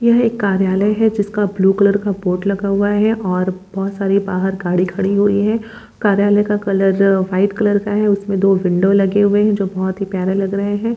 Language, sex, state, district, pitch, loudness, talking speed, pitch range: Hindi, female, Chhattisgarh, Bilaspur, 200 Hz, -16 LUFS, 220 wpm, 195-205 Hz